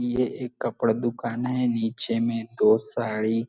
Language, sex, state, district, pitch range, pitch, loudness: Hindi, male, Chhattisgarh, Bilaspur, 115-125 Hz, 115 Hz, -25 LUFS